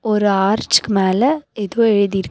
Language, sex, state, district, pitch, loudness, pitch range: Tamil, female, Tamil Nadu, Nilgiris, 205 Hz, -16 LUFS, 195-225 Hz